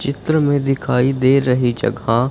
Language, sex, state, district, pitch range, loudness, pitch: Hindi, male, Punjab, Fazilka, 125-140 Hz, -17 LUFS, 135 Hz